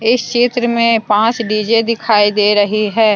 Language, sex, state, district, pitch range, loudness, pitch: Hindi, female, Jharkhand, Deoghar, 210-230 Hz, -13 LUFS, 225 Hz